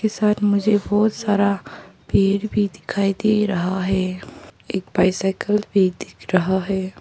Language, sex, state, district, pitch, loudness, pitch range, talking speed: Hindi, female, Arunachal Pradesh, Papum Pare, 195 Hz, -20 LUFS, 190-210 Hz, 135 wpm